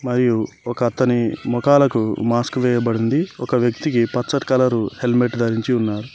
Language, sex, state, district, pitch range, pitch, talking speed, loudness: Telugu, male, Telangana, Mahabubabad, 115-125 Hz, 120 Hz, 125 wpm, -19 LUFS